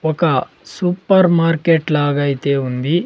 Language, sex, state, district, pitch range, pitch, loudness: Telugu, male, Andhra Pradesh, Sri Satya Sai, 145-175 Hz, 160 Hz, -16 LUFS